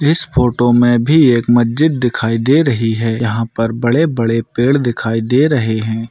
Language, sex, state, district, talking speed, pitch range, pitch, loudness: Hindi, male, Maharashtra, Sindhudurg, 175 wpm, 115-135 Hz, 120 Hz, -14 LUFS